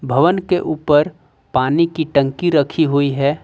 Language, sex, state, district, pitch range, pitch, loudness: Hindi, male, Jharkhand, Ranchi, 140-165 Hz, 150 Hz, -17 LUFS